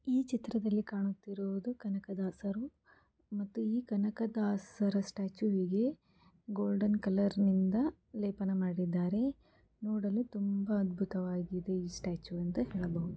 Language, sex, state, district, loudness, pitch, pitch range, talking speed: Kannada, female, Karnataka, Gulbarga, -35 LUFS, 200 Hz, 190-215 Hz, 90 wpm